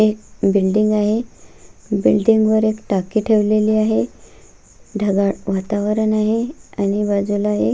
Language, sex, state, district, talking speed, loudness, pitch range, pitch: Marathi, female, Maharashtra, Solapur, 125 wpm, -18 LUFS, 200-215 Hz, 210 Hz